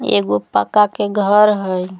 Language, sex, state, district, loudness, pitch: Magahi, female, Jharkhand, Palamu, -15 LUFS, 190 Hz